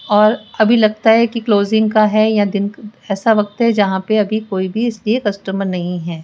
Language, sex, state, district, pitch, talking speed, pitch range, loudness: Hindi, female, Rajasthan, Jaipur, 215 Hz, 210 wpm, 200-220 Hz, -15 LUFS